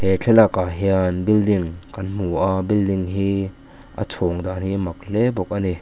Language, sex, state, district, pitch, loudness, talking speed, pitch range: Mizo, male, Mizoram, Aizawl, 95 Hz, -20 LUFS, 205 wpm, 90-100 Hz